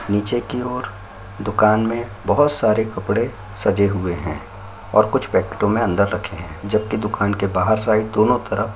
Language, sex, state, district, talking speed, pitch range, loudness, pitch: Hindi, male, Chhattisgarh, Korba, 170 wpm, 100-110 Hz, -20 LUFS, 105 Hz